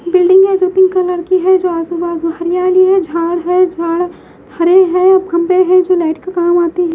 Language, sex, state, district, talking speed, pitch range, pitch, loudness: Hindi, female, Haryana, Jhajjar, 225 wpm, 345-370 Hz, 360 Hz, -12 LUFS